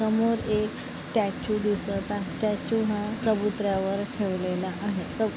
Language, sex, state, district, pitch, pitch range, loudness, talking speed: Marathi, female, Maharashtra, Nagpur, 210 Hz, 200-220 Hz, -27 LUFS, 110 wpm